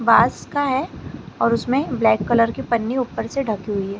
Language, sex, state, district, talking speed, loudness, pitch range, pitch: Hindi, female, Maharashtra, Gondia, 210 wpm, -20 LUFS, 220-260 Hz, 235 Hz